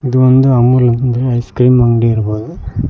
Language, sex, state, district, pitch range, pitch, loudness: Kannada, male, Karnataka, Koppal, 120-130 Hz, 125 Hz, -11 LUFS